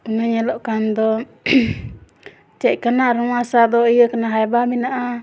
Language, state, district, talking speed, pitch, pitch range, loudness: Santali, Jharkhand, Sahebganj, 105 wpm, 235 Hz, 225-245 Hz, -17 LUFS